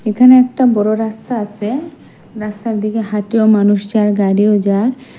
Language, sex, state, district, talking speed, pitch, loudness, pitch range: Bengali, female, Assam, Hailakandi, 150 wpm, 215 Hz, -14 LUFS, 210-240 Hz